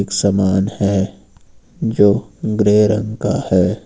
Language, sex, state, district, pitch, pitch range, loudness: Hindi, male, Uttar Pradesh, Lucknow, 100 Hz, 95-105 Hz, -16 LUFS